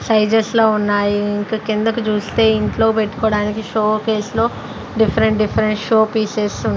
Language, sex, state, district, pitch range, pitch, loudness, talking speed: Telugu, female, Andhra Pradesh, Sri Satya Sai, 210-220 Hz, 215 Hz, -17 LUFS, 150 wpm